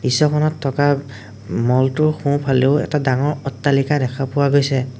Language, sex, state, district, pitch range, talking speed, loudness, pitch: Assamese, male, Assam, Sonitpur, 130-145 Hz, 130 wpm, -18 LUFS, 140 Hz